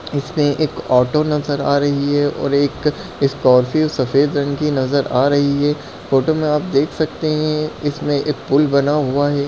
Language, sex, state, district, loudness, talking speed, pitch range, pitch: Hindi, male, Uttar Pradesh, Varanasi, -17 LUFS, 190 wpm, 140-150 Hz, 145 Hz